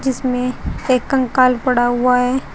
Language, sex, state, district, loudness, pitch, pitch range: Hindi, female, Uttar Pradesh, Shamli, -16 LUFS, 255 Hz, 250-260 Hz